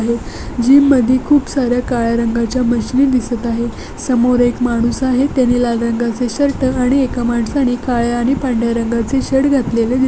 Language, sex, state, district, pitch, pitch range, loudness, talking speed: Marathi, female, Maharashtra, Chandrapur, 245 Hz, 235-260 Hz, -15 LUFS, 165 wpm